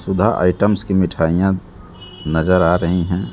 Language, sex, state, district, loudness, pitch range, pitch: Hindi, male, Bihar, West Champaran, -17 LUFS, 90-95 Hz, 90 Hz